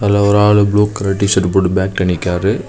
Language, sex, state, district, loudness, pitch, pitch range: Tamil, male, Tamil Nadu, Kanyakumari, -14 LUFS, 100 Hz, 95-105 Hz